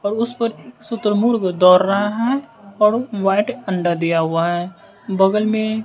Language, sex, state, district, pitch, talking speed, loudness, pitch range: Hindi, male, Bihar, West Champaran, 210 Hz, 155 wpm, -18 LUFS, 185-230 Hz